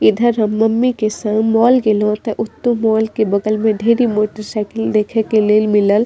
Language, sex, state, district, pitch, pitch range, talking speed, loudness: Maithili, female, Bihar, Madhepura, 220 Hz, 210-225 Hz, 200 wpm, -15 LUFS